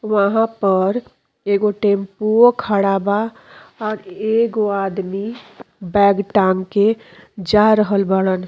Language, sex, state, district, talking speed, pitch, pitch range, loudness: Bhojpuri, female, Uttar Pradesh, Deoria, 105 wpm, 205 Hz, 195-215 Hz, -17 LUFS